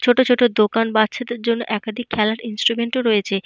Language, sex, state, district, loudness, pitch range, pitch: Bengali, female, Jharkhand, Jamtara, -19 LUFS, 215-240 Hz, 225 Hz